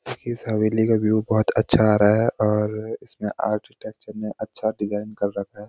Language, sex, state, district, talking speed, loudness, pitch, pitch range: Hindi, male, Uttarakhand, Uttarkashi, 190 wpm, -22 LUFS, 110 Hz, 105-110 Hz